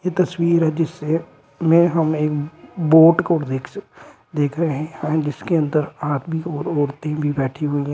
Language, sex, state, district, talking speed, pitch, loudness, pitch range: Hindi, male, Uttar Pradesh, Shamli, 150 wpm, 155 Hz, -19 LUFS, 145-165 Hz